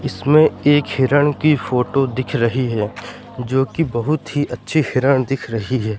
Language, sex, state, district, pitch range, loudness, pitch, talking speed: Hindi, male, Madhya Pradesh, Katni, 120-145 Hz, -18 LUFS, 130 Hz, 170 wpm